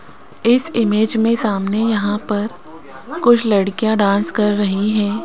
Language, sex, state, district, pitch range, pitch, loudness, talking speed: Hindi, female, Rajasthan, Jaipur, 200-225 Hz, 210 Hz, -17 LUFS, 135 wpm